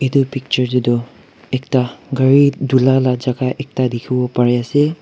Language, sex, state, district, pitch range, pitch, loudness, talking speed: Nagamese, male, Nagaland, Kohima, 125-135 Hz, 130 Hz, -16 LUFS, 165 wpm